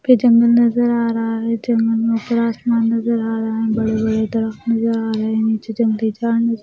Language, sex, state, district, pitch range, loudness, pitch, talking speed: Hindi, female, Maharashtra, Mumbai Suburban, 220-235 Hz, -17 LUFS, 230 Hz, 225 wpm